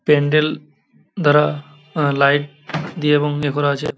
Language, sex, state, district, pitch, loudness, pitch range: Bengali, male, West Bengal, Paschim Medinipur, 150 Hz, -18 LUFS, 145-155 Hz